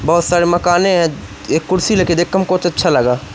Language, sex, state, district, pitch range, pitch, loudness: Hindi, male, Madhya Pradesh, Umaria, 165-185 Hz, 175 Hz, -14 LUFS